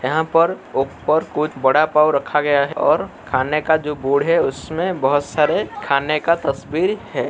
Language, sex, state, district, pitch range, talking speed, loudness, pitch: Hindi, male, Uttar Pradesh, Muzaffarnagar, 140-160 Hz, 180 wpm, -18 LUFS, 150 Hz